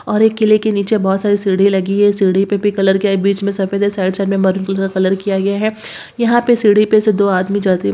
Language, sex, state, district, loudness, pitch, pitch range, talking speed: Hindi, female, Bihar, Purnia, -14 LUFS, 200 Hz, 195-210 Hz, 270 wpm